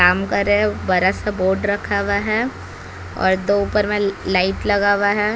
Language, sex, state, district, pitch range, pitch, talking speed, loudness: Hindi, female, Bihar, Patna, 185-205 Hz, 200 Hz, 200 wpm, -18 LUFS